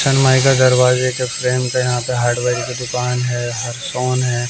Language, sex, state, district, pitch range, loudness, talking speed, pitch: Hindi, male, Haryana, Jhajjar, 125-130 Hz, -16 LUFS, 145 wpm, 125 Hz